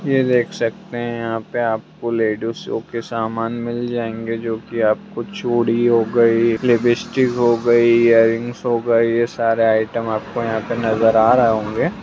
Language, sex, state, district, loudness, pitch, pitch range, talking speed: Hindi, male, Bihar, Jamui, -18 LUFS, 115 Hz, 115-120 Hz, 165 wpm